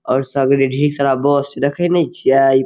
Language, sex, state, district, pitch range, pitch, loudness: Maithili, male, Bihar, Saharsa, 135-145 Hz, 140 Hz, -15 LUFS